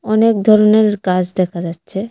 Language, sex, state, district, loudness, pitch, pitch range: Bengali, female, Tripura, West Tripura, -14 LUFS, 205 Hz, 185-215 Hz